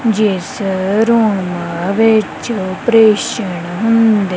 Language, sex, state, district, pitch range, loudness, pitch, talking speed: Punjabi, female, Punjab, Kapurthala, 185-225 Hz, -14 LUFS, 210 Hz, 70 wpm